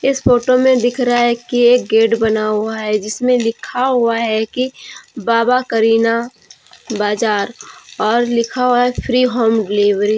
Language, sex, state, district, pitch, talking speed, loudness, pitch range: Hindi, female, Jharkhand, Deoghar, 230 Hz, 165 wpm, -15 LUFS, 220-250 Hz